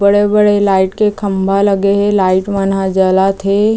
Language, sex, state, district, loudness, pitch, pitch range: Chhattisgarhi, female, Chhattisgarh, Jashpur, -12 LUFS, 200 Hz, 190-205 Hz